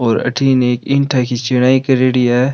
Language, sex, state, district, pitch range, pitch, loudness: Rajasthani, male, Rajasthan, Nagaur, 125-130 Hz, 125 Hz, -14 LUFS